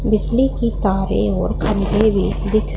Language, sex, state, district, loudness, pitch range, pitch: Hindi, female, Punjab, Pathankot, -18 LUFS, 200-225 Hz, 215 Hz